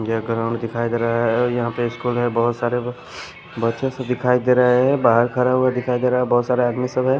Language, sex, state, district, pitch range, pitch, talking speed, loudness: Hindi, male, Bihar, Patna, 115-125 Hz, 120 Hz, 250 wpm, -19 LUFS